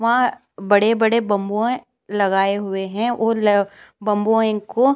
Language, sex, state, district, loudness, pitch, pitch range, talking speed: Hindi, female, Uttar Pradesh, Jyotiba Phule Nagar, -19 LUFS, 210 Hz, 200-230 Hz, 135 wpm